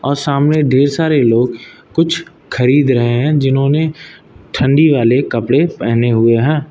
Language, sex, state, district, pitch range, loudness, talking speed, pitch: Hindi, male, Uttar Pradesh, Lucknow, 125-150 Hz, -13 LUFS, 135 wpm, 140 Hz